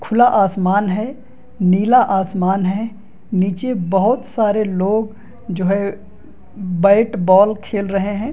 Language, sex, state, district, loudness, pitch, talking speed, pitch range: Hindi, male, Bihar, Madhepura, -16 LUFS, 200 Hz, 120 wpm, 190-220 Hz